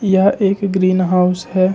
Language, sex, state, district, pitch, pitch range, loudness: Hindi, male, Jharkhand, Ranchi, 190 Hz, 185-195 Hz, -15 LUFS